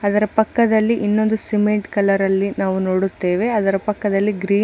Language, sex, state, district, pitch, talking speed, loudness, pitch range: Kannada, female, Karnataka, Chamarajanagar, 205 Hz, 90 wpm, -18 LUFS, 195-215 Hz